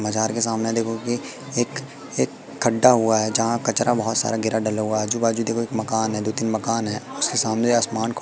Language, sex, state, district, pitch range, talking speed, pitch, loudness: Hindi, male, Madhya Pradesh, Katni, 110-115 Hz, 225 wpm, 115 Hz, -22 LUFS